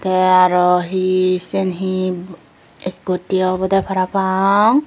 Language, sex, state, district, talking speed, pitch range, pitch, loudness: Chakma, female, Tripura, Dhalai, 110 wpm, 180-190 Hz, 185 Hz, -16 LUFS